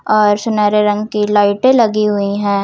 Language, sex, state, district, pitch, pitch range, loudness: Hindi, female, Jharkhand, Ranchi, 210 Hz, 205-215 Hz, -13 LUFS